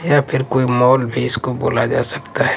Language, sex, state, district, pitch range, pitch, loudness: Hindi, male, Punjab, Pathankot, 125-135 Hz, 130 Hz, -17 LUFS